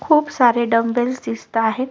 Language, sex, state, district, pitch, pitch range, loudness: Marathi, female, Maharashtra, Solapur, 240 Hz, 230-260 Hz, -18 LUFS